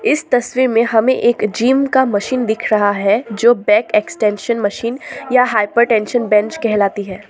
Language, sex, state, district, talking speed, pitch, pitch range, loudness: Hindi, female, Assam, Sonitpur, 165 wpm, 225 Hz, 210-250 Hz, -15 LUFS